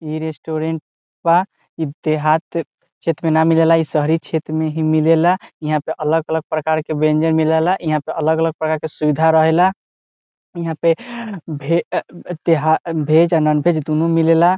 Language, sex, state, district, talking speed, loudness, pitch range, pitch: Bhojpuri, male, Bihar, Saran, 180 wpm, -17 LUFS, 155-165 Hz, 160 Hz